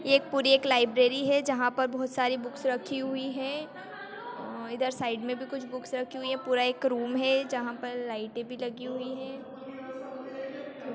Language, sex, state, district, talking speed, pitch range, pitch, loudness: Hindi, female, Bihar, Bhagalpur, 180 wpm, 250-265 Hz, 260 Hz, -30 LUFS